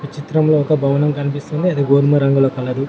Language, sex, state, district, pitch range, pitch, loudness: Telugu, male, Telangana, Mahabubabad, 140-150 Hz, 145 Hz, -16 LUFS